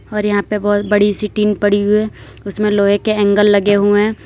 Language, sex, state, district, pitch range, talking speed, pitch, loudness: Hindi, female, Uttar Pradesh, Lalitpur, 205-210 Hz, 240 wpm, 205 Hz, -14 LUFS